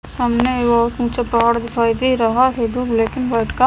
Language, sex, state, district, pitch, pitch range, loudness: Hindi, female, Himachal Pradesh, Shimla, 235 Hz, 230-250 Hz, -17 LUFS